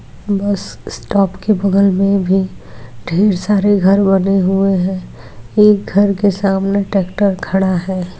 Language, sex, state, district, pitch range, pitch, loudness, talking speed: Hindi, female, Rajasthan, Nagaur, 185-200 Hz, 195 Hz, -14 LUFS, 130 wpm